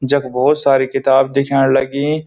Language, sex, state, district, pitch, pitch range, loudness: Garhwali, male, Uttarakhand, Uttarkashi, 135 Hz, 135-140 Hz, -14 LUFS